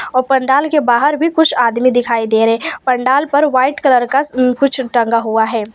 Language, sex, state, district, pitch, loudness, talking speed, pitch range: Hindi, female, Gujarat, Valsad, 255 Hz, -13 LUFS, 200 wpm, 235-275 Hz